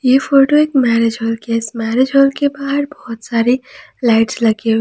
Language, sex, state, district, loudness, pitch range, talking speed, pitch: Hindi, female, Jharkhand, Palamu, -15 LUFS, 230-275 Hz, 210 wpm, 250 Hz